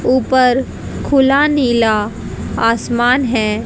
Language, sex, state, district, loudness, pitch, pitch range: Hindi, female, Haryana, Jhajjar, -14 LUFS, 245 Hz, 225-265 Hz